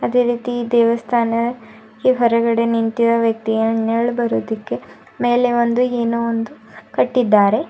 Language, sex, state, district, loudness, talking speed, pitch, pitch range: Kannada, female, Karnataka, Bidar, -18 LUFS, 110 wpm, 235 Hz, 225-240 Hz